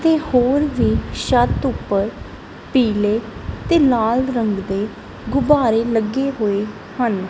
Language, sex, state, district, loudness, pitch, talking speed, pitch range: Punjabi, female, Punjab, Kapurthala, -18 LUFS, 230 Hz, 115 wpm, 210-265 Hz